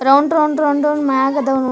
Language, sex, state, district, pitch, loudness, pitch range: Kannada, female, Karnataka, Dharwad, 285 Hz, -15 LUFS, 270-295 Hz